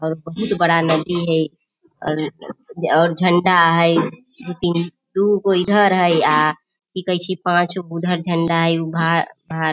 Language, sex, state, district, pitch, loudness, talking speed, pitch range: Maithili, female, Bihar, Samastipur, 170 Hz, -18 LUFS, 150 wpm, 165-180 Hz